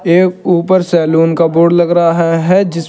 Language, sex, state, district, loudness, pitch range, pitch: Hindi, male, Uttar Pradesh, Saharanpur, -11 LUFS, 165-180 Hz, 170 Hz